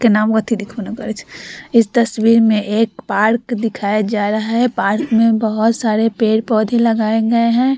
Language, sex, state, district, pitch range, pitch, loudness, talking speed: Hindi, female, Bihar, Vaishali, 215-230 Hz, 225 Hz, -15 LUFS, 125 wpm